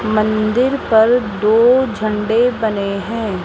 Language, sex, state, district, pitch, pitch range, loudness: Hindi, female, Rajasthan, Jaipur, 220 Hz, 215-235 Hz, -15 LUFS